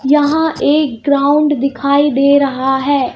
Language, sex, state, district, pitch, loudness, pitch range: Hindi, female, Madhya Pradesh, Bhopal, 285 Hz, -13 LUFS, 275-295 Hz